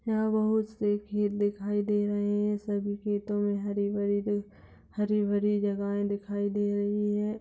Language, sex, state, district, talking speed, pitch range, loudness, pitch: Hindi, female, Jharkhand, Sahebganj, 170 wpm, 205-210 Hz, -29 LUFS, 205 Hz